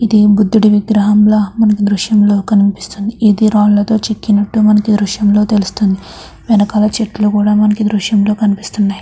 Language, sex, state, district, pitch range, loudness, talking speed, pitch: Telugu, female, Andhra Pradesh, Krishna, 205-215 Hz, -12 LUFS, 155 wpm, 210 Hz